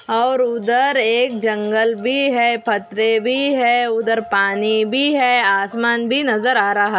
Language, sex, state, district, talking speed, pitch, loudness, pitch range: Hindi, female, Goa, North and South Goa, 165 wpm, 235 Hz, -17 LUFS, 220-250 Hz